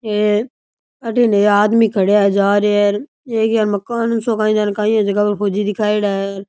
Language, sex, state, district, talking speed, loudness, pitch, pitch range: Rajasthani, male, Rajasthan, Churu, 185 wpm, -16 LUFS, 210 Hz, 205-225 Hz